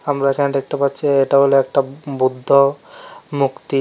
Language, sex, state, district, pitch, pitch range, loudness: Bengali, male, Tripura, West Tripura, 140 Hz, 135-140 Hz, -17 LUFS